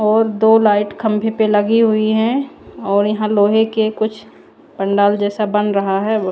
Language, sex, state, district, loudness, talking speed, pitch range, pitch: Hindi, female, Chandigarh, Chandigarh, -15 LUFS, 170 wpm, 205-220 Hz, 215 Hz